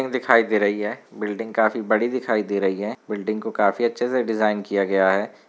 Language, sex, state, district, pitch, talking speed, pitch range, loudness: Hindi, male, Rajasthan, Nagaur, 110 Hz, 230 wpm, 105-115 Hz, -22 LUFS